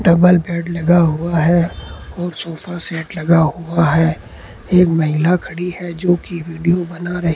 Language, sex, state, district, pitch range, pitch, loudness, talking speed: Hindi, male, Rajasthan, Bikaner, 165-175 Hz, 170 Hz, -16 LUFS, 165 wpm